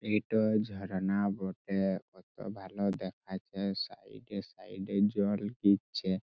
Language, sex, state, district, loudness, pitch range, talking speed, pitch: Bengali, male, West Bengal, Purulia, -33 LUFS, 95-105 Hz, 115 wpm, 100 Hz